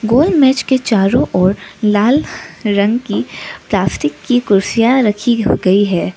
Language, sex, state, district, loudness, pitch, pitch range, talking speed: Hindi, female, Arunachal Pradesh, Lower Dibang Valley, -14 LUFS, 220 Hz, 200-255 Hz, 135 wpm